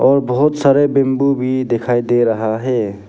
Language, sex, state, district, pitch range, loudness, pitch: Hindi, male, Arunachal Pradesh, Papum Pare, 120-140 Hz, -15 LUFS, 130 Hz